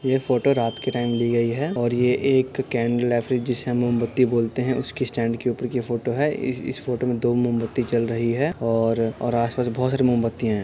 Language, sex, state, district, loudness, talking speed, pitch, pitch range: Hindi, male, Uttar Pradesh, Budaun, -23 LUFS, 230 wpm, 120 Hz, 115-130 Hz